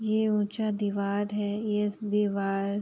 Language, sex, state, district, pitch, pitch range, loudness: Hindi, female, Uttar Pradesh, Etah, 205 Hz, 200-210 Hz, -29 LUFS